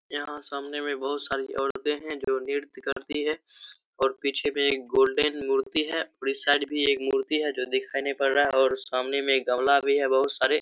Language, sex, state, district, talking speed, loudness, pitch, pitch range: Hindi, male, Bihar, Begusarai, 150 wpm, -26 LUFS, 140 Hz, 135-145 Hz